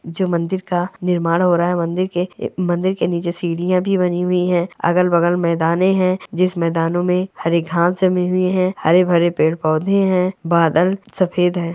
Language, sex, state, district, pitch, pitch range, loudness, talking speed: Hindi, female, Chhattisgarh, Sukma, 175 Hz, 170-185 Hz, -17 LUFS, 170 wpm